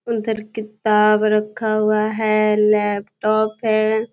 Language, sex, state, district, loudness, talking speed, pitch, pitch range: Hindi, female, Bihar, Jahanabad, -18 LUFS, 100 wpm, 215 Hz, 215-220 Hz